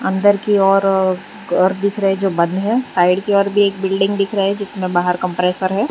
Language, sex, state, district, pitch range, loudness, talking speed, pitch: Hindi, female, Gujarat, Valsad, 185-200 Hz, -16 LUFS, 225 wpm, 195 Hz